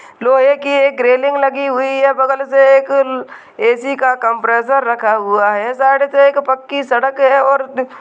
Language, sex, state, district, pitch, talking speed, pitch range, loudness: Hindi, male, Bihar, Kishanganj, 270 Hz, 180 wpm, 255-275 Hz, -13 LUFS